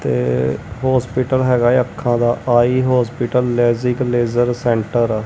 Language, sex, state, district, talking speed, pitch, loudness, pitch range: Punjabi, male, Punjab, Kapurthala, 135 wpm, 120 Hz, -17 LUFS, 120-125 Hz